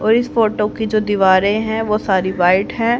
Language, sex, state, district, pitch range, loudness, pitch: Hindi, female, Haryana, Rohtak, 190-220 Hz, -16 LUFS, 210 Hz